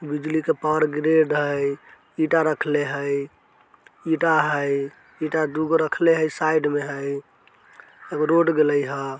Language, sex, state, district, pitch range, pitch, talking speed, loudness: Bajjika, male, Bihar, Vaishali, 145-160 Hz, 155 Hz, 145 wpm, -22 LUFS